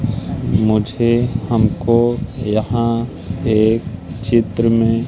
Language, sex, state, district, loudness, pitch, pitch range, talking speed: Hindi, male, Madhya Pradesh, Katni, -17 LUFS, 115 Hz, 110-120 Hz, 70 wpm